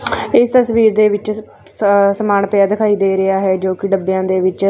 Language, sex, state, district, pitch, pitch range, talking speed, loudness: Punjabi, female, Punjab, Fazilka, 200 Hz, 195-215 Hz, 190 wpm, -14 LUFS